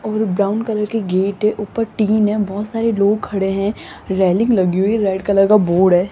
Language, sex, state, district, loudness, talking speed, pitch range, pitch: Hindi, female, Rajasthan, Jaipur, -17 LUFS, 205 wpm, 195-215 Hz, 205 Hz